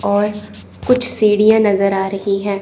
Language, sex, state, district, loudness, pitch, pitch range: Hindi, female, Chandigarh, Chandigarh, -15 LUFS, 205 Hz, 200-215 Hz